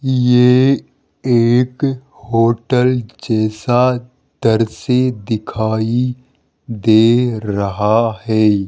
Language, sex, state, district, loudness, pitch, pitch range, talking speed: Hindi, male, Rajasthan, Jaipur, -15 LUFS, 120 Hz, 110-125 Hz, 60 wpm